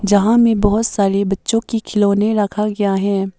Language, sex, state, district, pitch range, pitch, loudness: Hindi, female, Arunachal Pradesh, Papum Pare, 200-220 Hz, 205 Hz, -16 LUFS